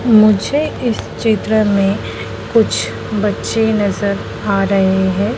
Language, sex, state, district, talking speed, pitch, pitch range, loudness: Hindi, female, Madhya Pradesh, Dhar, 110 wpm, 210 Hz, 200-220 Hz, -15 LUFS